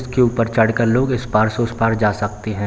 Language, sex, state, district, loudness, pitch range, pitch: Hindi, male, Bihar, Samastipur, -18 LUFS, 110-120 Hz, 115 Hz